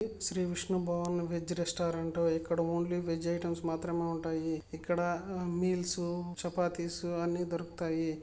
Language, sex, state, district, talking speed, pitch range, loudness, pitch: Telugu, male, Andhra Pradesh, Chittoor, 115 wpm, 170-175 Hz, -34 LUFS, 170 Hz